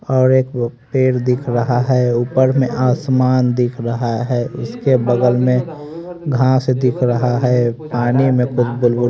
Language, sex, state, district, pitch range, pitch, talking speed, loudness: Hindi, male, Haryana, Rohtak, 120-130 Hz, 125 Hz, 160 wpm, -16 LUFS